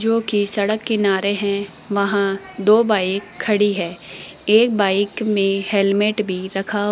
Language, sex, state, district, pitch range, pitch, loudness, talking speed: Hindi, female, Rajasthan, Jaipur, 195-215 Hz, 205 Hz, -18 LUFS, 140 wpm